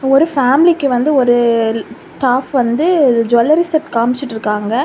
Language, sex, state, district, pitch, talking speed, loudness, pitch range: Tamil, female, Tamil Nadu, Kanyakumari, 255 Hz, 110 wpm, -13 LUFS, 235-285 Hz